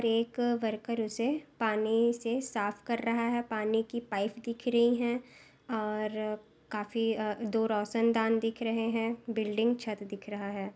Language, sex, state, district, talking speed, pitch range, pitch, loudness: Hindi, male, Maharashtra, Solapur, 155 wpm, 215-235 Hz, 225 Hz, -32 LUFS